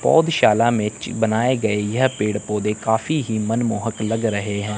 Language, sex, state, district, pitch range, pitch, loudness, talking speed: Hindi, male, Chandigarh, Chandigarh, 105-120 Hz, 110 Hz, -20 LUFS, 165 wpm